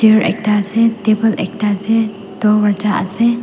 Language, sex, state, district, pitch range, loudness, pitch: Nagamese, female, Nagaland, Dimapur, 205-225 Hz, -15 LUFS, 210 Hz